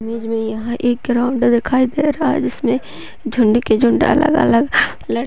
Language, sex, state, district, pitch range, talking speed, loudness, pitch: Hindi, female, Uttar Pradesh, Etah, 230-255 Hz, 180 wpm, -16 LUFS, 240 Hz